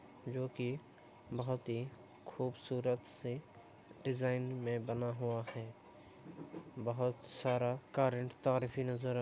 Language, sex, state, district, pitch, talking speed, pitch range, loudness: Hindi, male, Uttar Pradesh, Hamirpur, 125 Hz, 115 wpm, 120-130 Hz, -39 LUFS